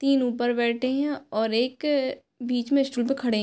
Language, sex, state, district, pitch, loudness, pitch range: Hindi, female, Uttar Pradesh, Hamirpur, 255 Hz, -25 LUFS, 240-275 Hz